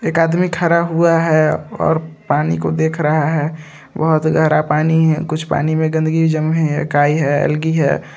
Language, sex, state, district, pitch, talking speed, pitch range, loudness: Hindi, male, Bihar, Araria, 155 Hz, 190 wpm, 155-160 Hz, -16 LUFS